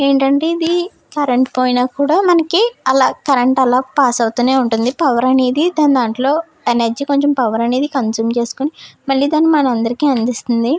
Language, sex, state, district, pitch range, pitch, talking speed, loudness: Telugu, female, Andhra Pradesh, Srikakulam, 245-295 Hz, 265 Hz, 135 wpm, -15 LUFS